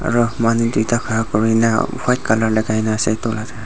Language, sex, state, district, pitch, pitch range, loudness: Nagamese, male, Nagaland, Dimapur, 110 Hz, 110-115 Hz, -17 LUFS